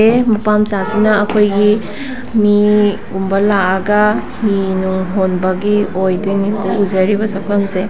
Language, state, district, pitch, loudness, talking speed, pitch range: Manipuri, Manipur, Imphal West, 205 Hz, -14 LUFS, 90 wpm, 190-210 Hz